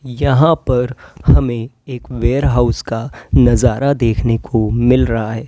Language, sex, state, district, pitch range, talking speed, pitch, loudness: Hindi, male, Uttar Pradesh, Lalitpur, 115-130 Hz, 130 wpm, 125 Hz, -15 LUFS